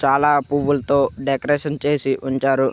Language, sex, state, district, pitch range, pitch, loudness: Telugu, male, Andhra Pradesh, Krishna, 135-145 Hz, 140 Hz, -19 LUFS